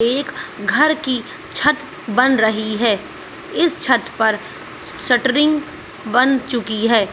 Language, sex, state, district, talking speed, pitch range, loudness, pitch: Hindi, female, Uttar Pradesh, Gorakhpur, 120 wpm, 220-300 Hz, -17 LUFS, 250 Hz